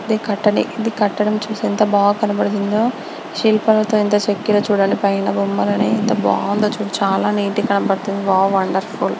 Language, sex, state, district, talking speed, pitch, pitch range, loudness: Telugu, female, Andhra Pradesh, Guntur, 145 wpm, 205 Hz, 195-215 Hz, -17 LUFS